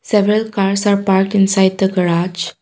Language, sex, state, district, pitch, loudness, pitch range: English, female, Assam, Kamrup Metropolitan, 195 Hz, -15 LUFS, 190-205 Hz